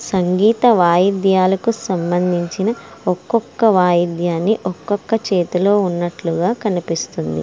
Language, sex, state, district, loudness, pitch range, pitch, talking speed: Telugu, female, Andhra Pradesh, Srikakulam, -17 LUFS, 175-215 Hz, 185 Hz, 75 wpm